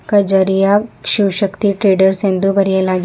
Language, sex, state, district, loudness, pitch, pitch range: Kannada, female, Karnataka, Bidar, -14 LUFS, 195 Hz, 190-205 Hz